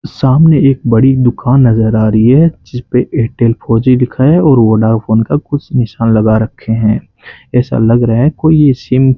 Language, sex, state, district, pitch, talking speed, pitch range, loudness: Hindi, male, Rajasthan, Bikaner, 125 Hz, 195 wpm, 115-140 Hz, -10 LUFS